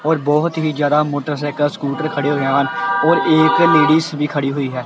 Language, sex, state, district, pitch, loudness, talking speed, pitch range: Punjabi, male, Punjab, Kapurthala, 150 Hz, -16 LUFS, 200 wpm, 145-160 Hz